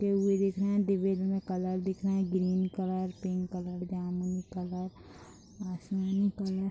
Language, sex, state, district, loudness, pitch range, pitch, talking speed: Hindi, female, Bihar, Madhepura, -32 LUFS, 185-195 Hz, 190 Hz, 160 wpm